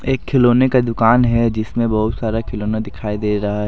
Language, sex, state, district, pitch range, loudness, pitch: Hindi, male, Jharkhand, Deoghar, 105-120 Hz, -17 LUFS, 115 Hz